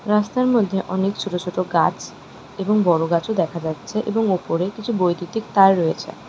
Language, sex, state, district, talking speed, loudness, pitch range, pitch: Bengali, female, West Bengal, Darjeeling, 160 wpm, -20 LUFS, 175-215 Hz, 195 Hz